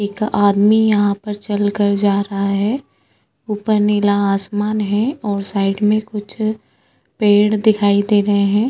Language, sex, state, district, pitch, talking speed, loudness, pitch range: Hindi, female, Chhattisgarh, Sukma, 205 Hz, 150 wpm, -16 LUFS, 205-215 Hz